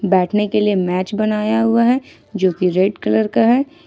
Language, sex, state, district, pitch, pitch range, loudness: Hindi, female, Jharkhand, Ranchi, 210 Hz, 185-225 Hz, -17 LUFS